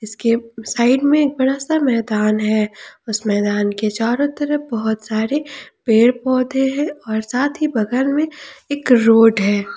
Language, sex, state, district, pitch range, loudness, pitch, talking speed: Hindi, female, Jharkhand, Palamu, 220-280 Hz, -17 LUFS, 235 Hz, 160 wpm